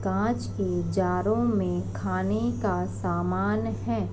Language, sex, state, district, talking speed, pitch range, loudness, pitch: Hindi, female, Uttar Pradesh, Varanasi, 115 wpm, 90-115 Hz, -27 LUFS, 100 Hz